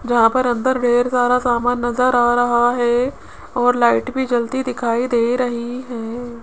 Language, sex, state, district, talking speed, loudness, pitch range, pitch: Hindi, female, Rajasthan, Jaipur, 170 wpm, -18 LUFS, 240-250 Hz, 245 Hz